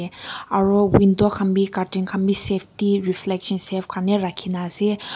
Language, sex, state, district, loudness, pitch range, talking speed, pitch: Nagamese, female, Nagaland, Kohima, -21 LUFS, 185-200 Hz, 140 wpm, 195 Hz